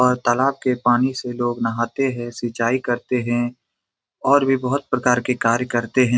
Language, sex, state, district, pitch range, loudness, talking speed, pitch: Hindi, male, Bihar, Lakhisarai, 120-130 Hz, -20 LUFS, 185 wpm, 125 Hz